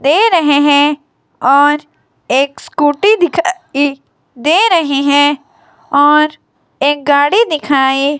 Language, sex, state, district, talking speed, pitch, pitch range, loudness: Hindi, female, Himachal Pradesh, Shimla, 110 wpm, 290 Hz, 280-310 Hz, -12 LUFS